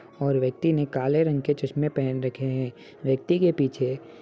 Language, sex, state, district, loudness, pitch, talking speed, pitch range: Hindi, male, Uttar Pradesh, Ghazipur, -25 LUFS, 135 Hz, 215 wpm, 130-150 Hz